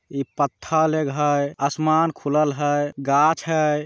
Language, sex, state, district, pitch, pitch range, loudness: Magahi, male, Bihar, Jamui, 150 Hz, 140-155 Hz, -21 LUFS